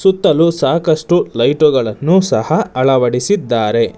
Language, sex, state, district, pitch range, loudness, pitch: Kannada, male, Karnataka, Bangalore, 125-175 Hz, -13 LUFS, 155 Hz